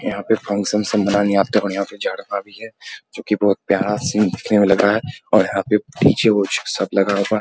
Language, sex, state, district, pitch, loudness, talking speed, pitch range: Hindi, male, Bihar, Muzaffarpur, 105 Hz, -18 LUFS, 245 wpm, 100-110 Hz